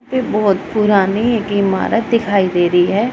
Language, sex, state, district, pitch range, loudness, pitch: Hindi, female, Punjab, Pathankot, 195-230 Hz, -15 LUFS, 205 Hz